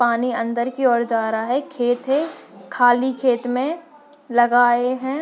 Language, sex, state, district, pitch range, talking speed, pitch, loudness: Hindi, female, Chhattisgarh, Bastar, 240-270 Hz, 160 wpm, 245 Hz, -19 LUFS